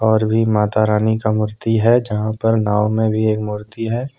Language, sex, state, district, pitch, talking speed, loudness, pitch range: Hindi, male, Jharkhand, Deoghar, 110 Hz, 215 wpm, -17 LUFS, 105-115 Hz